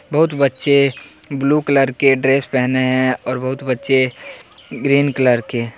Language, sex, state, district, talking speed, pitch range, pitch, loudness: Hindi, male, Jharkhand, Deoghar, 145 wpm, 130-140 Hz, 135 Hz, -16 LUFS